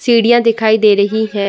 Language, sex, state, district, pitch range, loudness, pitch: Hindi, female, Uttar Pradesh, Muzaffarnagar, 210-230 Hz, -12 LUFS, 220 Hz